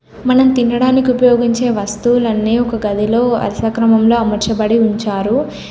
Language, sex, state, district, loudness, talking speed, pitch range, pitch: Telugu, female, Telangana, Komaram Bheem, -14 LUFS, 105 wpm, 215-245 Hz, 230 Hz